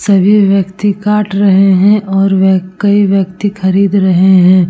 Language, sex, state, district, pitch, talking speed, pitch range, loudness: Hindi, female, Uttar Pradesh, Etah, 195 Hz, 155 wpm, 190-200 Hz, -10 LUFS